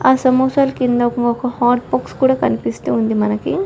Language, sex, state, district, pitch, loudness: Telugu, female, Telangana, Karimnagar, 240 Hz, -16 LUFS